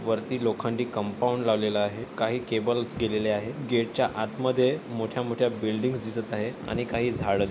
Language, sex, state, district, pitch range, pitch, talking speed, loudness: Marathi, male, Maharashtra, Nagpur, 110-120 Hz, 115 Hz, 170 wpm, -28 LUFS